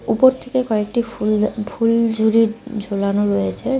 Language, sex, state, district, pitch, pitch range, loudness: Bengali, female, West Bengal, Cooch Behar, 220 Hz, 210-235 Hz, -18 LUFS